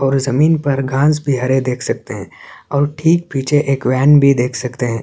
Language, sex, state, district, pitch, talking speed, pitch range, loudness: Hindi, male, Chhattisgarh, Sarguja, 135 Hz, 215 wpm, 130-145 Hz, -15 LUFS